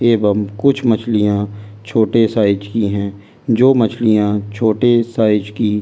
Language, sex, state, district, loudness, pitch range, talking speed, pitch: Hindi, male, Delhi, New Delhi, -15 LUFS, 105-115 Hz, 115 wpm, 110 Hz